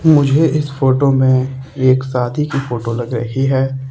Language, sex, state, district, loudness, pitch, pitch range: Hindi, male, Haryana, Charkhi Dadri, -15 LUFS, 130 Hz, 130-140 Hz